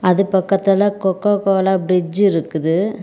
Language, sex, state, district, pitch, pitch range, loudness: Tamil, female, Tamil Nadu, Kanyakumari, 190 Hz, 180-200 Hz, -16 LUFS